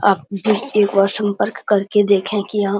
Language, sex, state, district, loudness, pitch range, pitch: Hindi, male, Bihar, Supaul, -17 LUFS, 200-210 Hz, 205 Hz